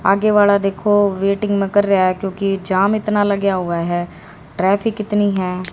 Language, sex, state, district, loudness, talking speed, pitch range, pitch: Hindi, female, Haryana, Rohtak, -17 LUFS, 180 wpm, 185-205 Hz, 195 Hz